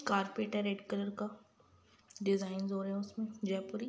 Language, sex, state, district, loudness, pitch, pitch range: Hindi, female, Bihar, Gopalganj, -38 LUFS, 200 Hz, 195-210 Hz